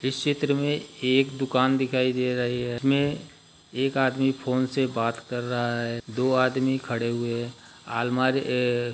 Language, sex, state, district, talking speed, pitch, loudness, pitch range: Hindi, male, Bihar, Jahanabad, 170 wpm, 130 Hz, -25 LUFS, 120-135 Hz